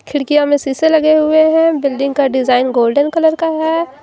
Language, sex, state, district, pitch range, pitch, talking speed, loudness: Hindi, female, Jharkhand, Deoghar, 275-320 Hz, 295 Hz, 195 wpm, -13 LUFS